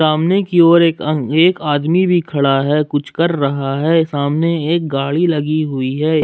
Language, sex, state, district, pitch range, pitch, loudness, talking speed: Hindi, male, Jharkhand, Ranchi, 145-170 Hz, 155 Hz, -15 LUFS, 185 wpm